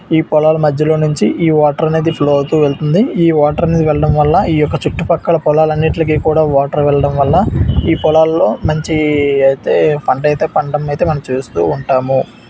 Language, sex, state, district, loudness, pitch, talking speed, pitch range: Telugu, male, Andhra Pradesh, Visakhapatnam, -13 LUFS, 150 Hz, 155 wpm, 145-160 Hz